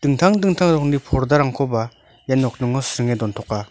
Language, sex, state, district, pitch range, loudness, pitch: Garo, male, Meghalaya, North Garo Hills, 120-145 Hz, -19 LUFS, 130 Hz